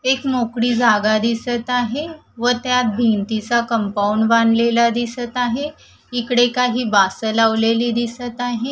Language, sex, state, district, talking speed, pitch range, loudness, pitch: Marathi, female, Maharashtra, Gondia, 125 wpm, 230-245 Hz, -18 LUFS, 240 Hz